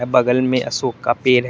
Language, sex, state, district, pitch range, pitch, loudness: Hindi, male, Tripura, West Tripura, 125-130 Hz, 125 Hz, -18 LUFS